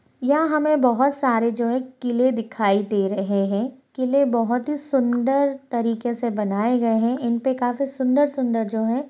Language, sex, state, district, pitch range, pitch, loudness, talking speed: Hindi, female, Bihar, Jahanabad, 230-270 Hz, 245 Hz, -22 LUFS, 180 wpm